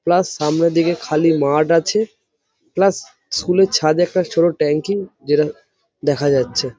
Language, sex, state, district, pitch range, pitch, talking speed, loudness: Bengali, male, West Bengal, Jhargram, 150-185 Hz, 165 Hz, 140 wpm, -17 LUFS